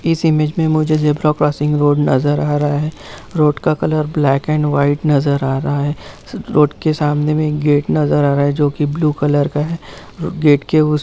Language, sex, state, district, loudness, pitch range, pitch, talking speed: Hindi, male, West Bengal, Purulia, -15 LUFS, 145-155 Hz, 150 Hz, 210 wpm